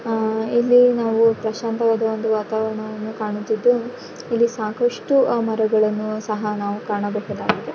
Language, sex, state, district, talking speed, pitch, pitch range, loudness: Kannada, female, Karnataka, Dakshina Kannada, 100 wpm, 220 Hz, 215-235 Hz, -20 LUFS